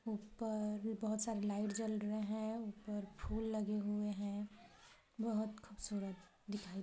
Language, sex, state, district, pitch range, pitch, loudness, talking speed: Hindi, female, Chhattisgarh, Balrampur, 205-220 Hz, 210 Hz, -42 LUFS, 140 wpm